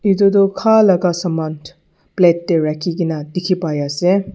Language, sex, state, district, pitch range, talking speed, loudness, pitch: Nagamese, male, Nagaland, Dimapur, 160-195 Hz, 165 wpm, -16 LUFS, 175 Hz